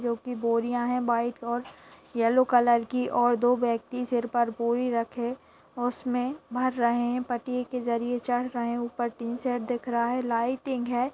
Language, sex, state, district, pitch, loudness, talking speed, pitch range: Hindi, female, Bihar, Araria, 240 Hz, -27 LUFS, 185 wpm, 235-250 Hz